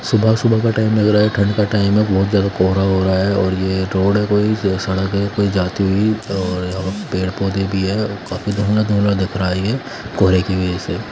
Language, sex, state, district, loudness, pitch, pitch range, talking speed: Hindi, male, Bihar, West Champaran, -17 LUFS, 100 Hz, 95-105 Hz, 225 wpm